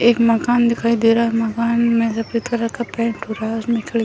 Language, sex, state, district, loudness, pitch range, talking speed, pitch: Hindi, female, Bihar, Sitamarhi, -18 LUFS, 225-235 Hz, 250 wpm, 230 Hz